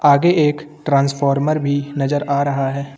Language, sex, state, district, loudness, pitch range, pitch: Hindi, male, Uttar Pradesh, Lucknow, -17 LUFS, 140-150 Hz, 140 Hz